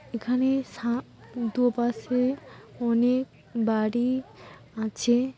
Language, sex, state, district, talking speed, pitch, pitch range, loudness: Bengali, female, West Bengal, Jhargram, 65 wpm, 240 Hz, 230-250 Hz, -27 LUFS